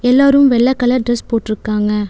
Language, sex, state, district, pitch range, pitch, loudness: Tamil, female, Tamil Nadu, Nilgiris, 215-255 Hz, 240 Hz, -14 LUFS